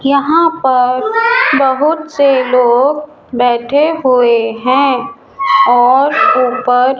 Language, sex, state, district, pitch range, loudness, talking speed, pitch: Hindi, male, Rajasthan, Jaipur, 250-310 Hz, -11 LUFS, 95 wpm, 270 Hz